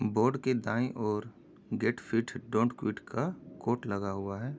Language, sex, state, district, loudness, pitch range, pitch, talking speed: Hindi, male, Uttar Pradesh, Jyotiba Phule Nagar, -33 LUFS, 105-120 Hz, 115 Hz, 170 wpm